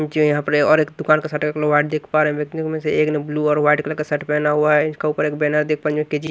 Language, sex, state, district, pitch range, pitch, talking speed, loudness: Hindi, male, Odisha, Nuapada, 150-155 Hz, 150 Hz, 305 wpm, -19 LUFS